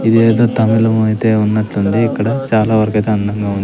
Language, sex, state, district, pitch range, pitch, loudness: Telugu, male, Andhra Pradesh, Sri Satya Sai, 105-115 Hz, 110 Hz, -14 LUFS